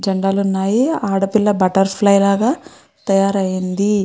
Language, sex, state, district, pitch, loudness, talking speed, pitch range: Telugu, female, Andhra Pradesh, Krishna, 195 Hz, -16 LUFS, 120 wpm, 195-210 Hz